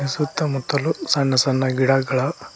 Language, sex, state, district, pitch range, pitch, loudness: Kannada, male, Karnataka, Koppal, 130-150 Hz, 140 Hz, -20 LUFS